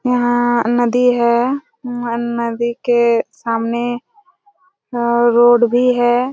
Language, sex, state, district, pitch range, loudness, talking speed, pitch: Hindi, female, Chhattisgarh, Raigarh, 235-250 Hz, -15 LUFS, 105 wpm, 240 Hz